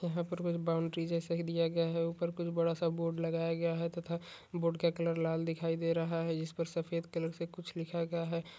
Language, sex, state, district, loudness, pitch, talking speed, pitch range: Hindi, male, Uttarakhand, Uttarkashi, -35 LUFS, 170 Hz, 245 wpm, 165-170 Hz